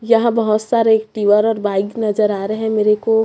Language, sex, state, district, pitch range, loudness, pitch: Hindi, female, Chhattisgarh, Raipur, 210-225 Hz, -16 LUFS, 215 Hz